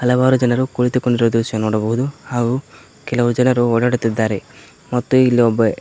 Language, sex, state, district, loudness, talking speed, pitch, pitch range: Kannada, male, Karnataka, Koppal, -17 LUFS, 125 wpm, 120 Hz, 115-125 Hz